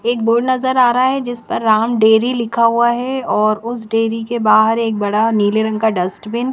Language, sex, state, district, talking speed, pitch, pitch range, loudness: Hindi, female, Chandigarh, Chandigarh, 230 wpm, 230 Hz, 220-240 Hz, -15 LUFS